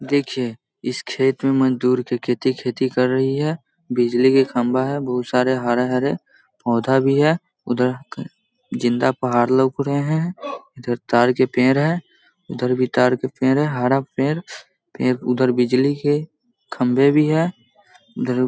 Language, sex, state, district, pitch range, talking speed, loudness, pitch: Hindi, male, Bihar, Sitamarhi, 125-140 Hz, 155 wpm, -19 LUFS, 130 Hz